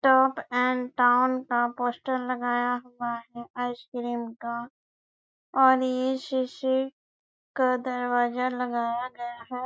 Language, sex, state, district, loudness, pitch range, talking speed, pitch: Hindi, female, Chhattisgarh, Bastar, -27 LUFS, 240-255 Hz, 120 wpm, 250 Hz